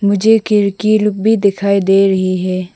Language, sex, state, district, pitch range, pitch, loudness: Hindi, female, Mizoram, Aizawl, 195-210 Hz, 200 Hz, -13 LUFS